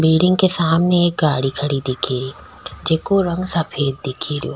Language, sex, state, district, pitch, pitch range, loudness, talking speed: Rajasthani, female, Rajasthan, Nagaur, 160 Hz, 135-175 Hz, -18 LUFS, 170 wpm